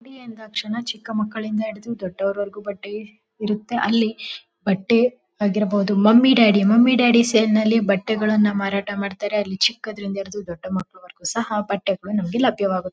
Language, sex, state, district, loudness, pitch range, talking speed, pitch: Kannada, female, Karnataka, Mysore, -20 LUFS, 200-225 Hz, 145 wpm, 210 Hz